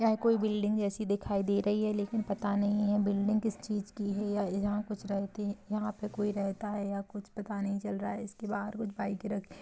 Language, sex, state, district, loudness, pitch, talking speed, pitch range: Hindi, female, Chhattisgarh, Kabirdham, -33 LUFS, 205 Hz, 245 wpm, 200-210 Hz